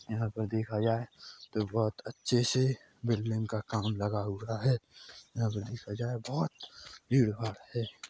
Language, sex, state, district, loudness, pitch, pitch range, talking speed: Hindi, male, Chhattisgarh, Korba, -33 LUFS, 110 Hz, 110-120 Hz, 155 wpm